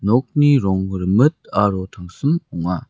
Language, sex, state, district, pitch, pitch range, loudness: Garo, male, Meghalaya, West Garo Hills, 100 Hz, 95-140 Hz, -18 LUFS